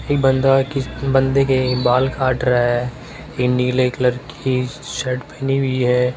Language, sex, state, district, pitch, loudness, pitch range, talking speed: Hindi, male, Rajasthan, Jaipur, 130 Hz, -18 LUFS, 125-135 Hz, 165 wpm